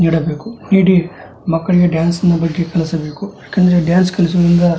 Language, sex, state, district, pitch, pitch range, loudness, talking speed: Kannada, male, Karnataka, Dharwad, 175 Hz, 165-185 Hz, -14 LUFS, 140 wpm